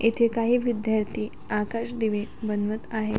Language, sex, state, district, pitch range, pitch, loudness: Marathi, female, Maharashtra, Sindhudurg, 215-230 Hz, 220 Hz, -27 LUFS